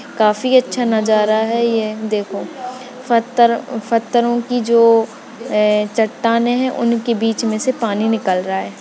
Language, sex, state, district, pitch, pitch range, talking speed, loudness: Hindi, female, Maharashtra, Sindhudurg, 230 Hz, 215-240 Hz, 135 wpm, -16 LUFS